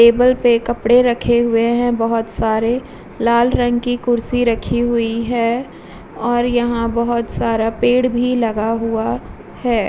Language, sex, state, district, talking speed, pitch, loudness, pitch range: Hindi, female, Bihar, Vaishali, 145 wpm, 235 Hz, -17 LUFS, 230-245 Hz